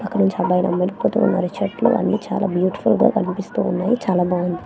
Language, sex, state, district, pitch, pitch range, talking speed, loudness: Telugu, female, Andhra Pradesh, Manyam, 185 Hz, 180-200 Hz, 155 wpm, -19 LUFS